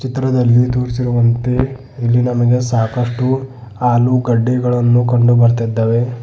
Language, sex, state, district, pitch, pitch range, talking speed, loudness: Kannada, male, Karnataka, Bidar, 120 Hz, 120-125 Hz, 75 wpm, -15 LUFS